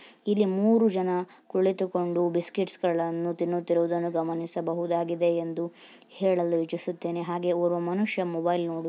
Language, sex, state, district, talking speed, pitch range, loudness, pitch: Kannada, female, Karnataka, Dharwad, 110 wpm, 170-185 Hz, -27 LUFS, 175 Hz